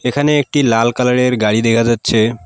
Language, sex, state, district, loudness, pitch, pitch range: Bengali, male, West Bengal, Alipurduar, -14 LUFS, 120 Hz, 115-125 Hz